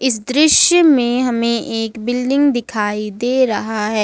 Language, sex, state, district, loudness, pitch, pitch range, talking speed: Hindi, female, Jharkhand, Ranchi, -15 LUFS, 240 Hz, 220-260 Hz, 150 wpm